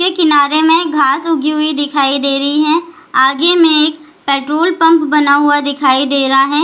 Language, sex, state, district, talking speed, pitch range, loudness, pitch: Hindi, female, Bihar, Jahanabad, 180 wpm, 280-325 Hz, -11 LUFS, 300 Hz